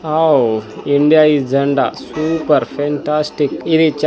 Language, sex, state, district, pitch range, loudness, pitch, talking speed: Telugu, male, Andhra Pradesh, Guntur, 145-155 Hz, -15 LUFS, 150 Hz, 105 wpm